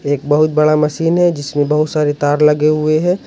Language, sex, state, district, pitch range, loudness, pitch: Hindi, male, Jharkhand, Ranchi, 145-155 Hz, -14 LUFS, 150 Hz